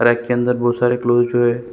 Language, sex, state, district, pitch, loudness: Hindi, male, Chhattisgarh, Sukma, 120 Hz, -17 LUFS